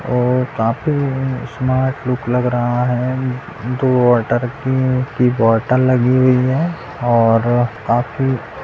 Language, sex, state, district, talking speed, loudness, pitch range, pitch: Hindi, male, Bihar, Purnia, 125 wpm, -16 LUFS, 120-130 Hz, 125 Hz